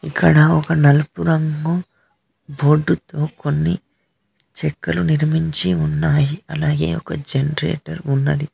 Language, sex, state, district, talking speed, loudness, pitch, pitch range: Telugu, male, Telangana, Mahabubabad, 100 wpm, -18 LUFS, 155 Hz, 145-160 Hz